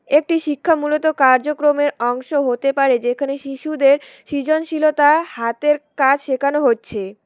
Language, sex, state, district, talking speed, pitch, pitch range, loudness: Bengali, female, West Bengal, Cooch Behar, 105 wpm, 285 Hz, 265-300 Hz, -17 LUFS